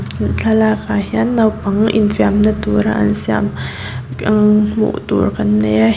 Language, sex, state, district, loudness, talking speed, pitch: Mizo, female, Mizoram, Aizawl, -15 LUFS, 140 wpm, 205 Hz